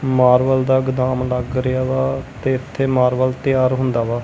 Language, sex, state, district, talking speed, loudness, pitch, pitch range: Punjabi, male, Punjab, Kapurthala, 170 wpm, -18 LUFS, 130 Hz, 125-130 Hz